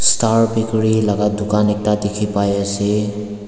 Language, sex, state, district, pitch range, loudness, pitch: Nagamese, male, Nagaland, Dimapur, 105-110 Hz, -17 LUFS, 105 Hz